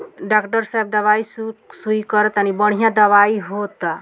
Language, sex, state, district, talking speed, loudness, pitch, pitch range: Bhojpuri, female, Bihar, Muzaffarpur, 135 wpm, -17 LUFS, 215 Hz, 210-220 Hz